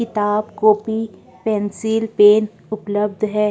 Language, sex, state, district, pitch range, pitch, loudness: Hindi, female, Chhattisgarh, Korba, 210-220 Hz, 215 Hz, -18 LUFS